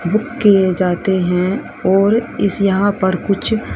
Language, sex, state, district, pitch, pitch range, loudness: Hindi, female, Haryana, Rohtak, 195 Hz, 185-205 Hz, -15 LUFS